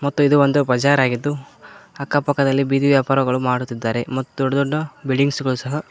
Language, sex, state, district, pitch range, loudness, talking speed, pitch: Kannada, male, Karnataka, Koppal, 130-145 Hz, -19 LUFS, 150 wpm, 135 Hz